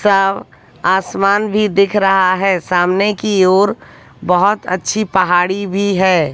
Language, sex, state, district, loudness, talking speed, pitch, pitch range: Hindi, female, Haryana, Jhajjar, -14 LUFS, 130 wpm, 195 Hz, 185-200 Hz